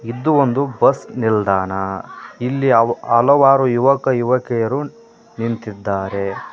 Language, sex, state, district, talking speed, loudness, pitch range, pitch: Kannada, male, Karnataka, Koppal, 85 wpm, -17 LUFS, 110-135 Hz, 120 Hz